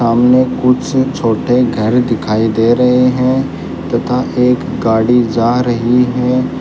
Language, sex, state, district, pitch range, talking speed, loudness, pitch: Hindi, male, Rajasthan, Bikaner, 115-125 Hz, 125 wpm, -13 LUFS, 125 Hz